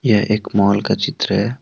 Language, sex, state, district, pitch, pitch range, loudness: Hindi, male, Jharkhand, Deoghar, 105 Hz, 100-105 Hz, -17 LUFS